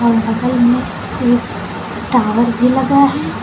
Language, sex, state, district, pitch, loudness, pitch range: Hindi, female, Uttar Pradesh, Lucknow, 240 Hz, -15 LUFS, 230-250 Hz